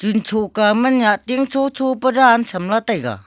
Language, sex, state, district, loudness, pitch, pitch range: Wancho, female, Arunachal Pradesh, Longding, -16 LUFS, 225 Hz, 210-260 Hz